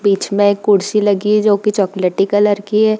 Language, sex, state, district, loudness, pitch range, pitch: Hindi, female, Jharkhand, Sahebganj, -14 LUFS, 200-210 Hz, 205 Hz